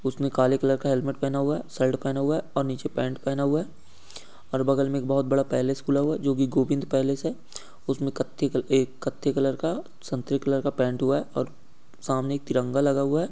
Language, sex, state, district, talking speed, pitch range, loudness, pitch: Hindi, male, Uttar Pradesh, Gorakhpur, 230 wpm, 130-140 Hz, -26 LUFS, 135 Hz